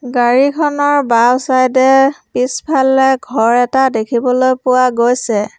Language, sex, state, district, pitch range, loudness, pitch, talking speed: Assamese, female, Assam, Sonitpur, 245-265 Hz, -12 LUFS, 255 Hz, 95 wpm